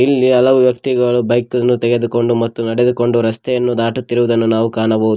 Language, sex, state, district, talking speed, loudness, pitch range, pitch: Kannada, male, Karnataka, Koppal, 140 wpm, -14 LUFS, 115-125 Hz, 120 Hz